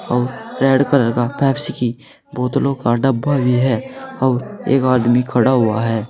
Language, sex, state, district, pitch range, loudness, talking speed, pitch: Hindi, male, Uttar Pradesh, Saharanpur, 120-135 Hz, -17 LUFS, 165 wpm, 125 Hz